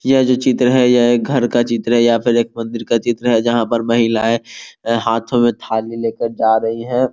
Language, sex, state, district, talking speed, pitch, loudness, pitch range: Hindi, male, Bihar, Gopalganj, 200 wpm, 115 Hz, -16 LUFS, 115-120 Hz